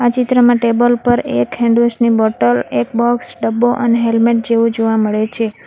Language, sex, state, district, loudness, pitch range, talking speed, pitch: Gujarati, female, Gujarat, Valsad, -14 LUFS, 220-240 Hz, 180 wpm, 230 Hz